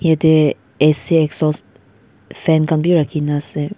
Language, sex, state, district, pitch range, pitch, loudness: Nagamese, female, Nagaland, Dimapur, 150-160 Hz, 155 Hz, -15 LUFS